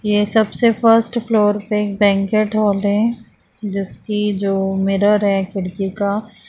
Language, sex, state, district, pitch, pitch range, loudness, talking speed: Hindi, female, Bihar, Bhagalpur, 210 Hz, 200-215 Hz, -17 LUFS, 140 wpm